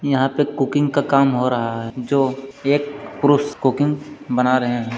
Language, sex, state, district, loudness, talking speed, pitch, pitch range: Hindi, male, Bihar, Jamui, -19 LUFS, 170 wpm, 135 Hz, 125-145 Hz